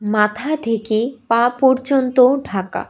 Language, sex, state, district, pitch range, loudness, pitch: Bengali, female, Tripura, West Tripura, 215-265 Hz, -17 LUFS, 240 Hz